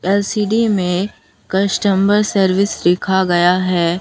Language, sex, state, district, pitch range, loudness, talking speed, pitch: Hindi, female, Bihar, Katihar, 180-205 Hz, -15 LUFS, 105 wpm, 190 Hz